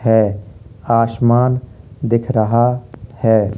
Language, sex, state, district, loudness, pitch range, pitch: Hindi, male, Uttar Pradesh, Hamirpur, -16 LUFS, 110-120 Hz, 115 Hz